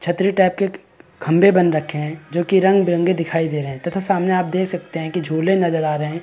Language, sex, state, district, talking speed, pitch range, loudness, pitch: Hindi, male, Chhattisgarh, Bilaspur, 250 wpm, 160-185 Hz, -18 LUFS, 175 Hz